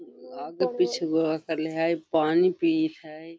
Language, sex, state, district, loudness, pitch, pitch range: Magahi, female, Bihar, Gaya, -25 LUFS, 160 Hz, 160-170 Hz